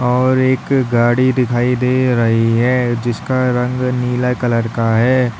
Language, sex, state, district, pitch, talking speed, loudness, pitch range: Hindi, male, Uttar Pradesh, Lalitpur, 125 Hz, 145 wpm, -15 LUFS, 120-125 Hz